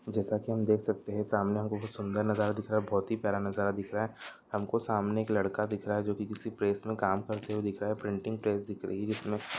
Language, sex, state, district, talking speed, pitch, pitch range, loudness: Hindi, male, Andhra Pradesh, Anantapur, 245 wpm, 105 Hz, 100-110 Hz, -33 LUFS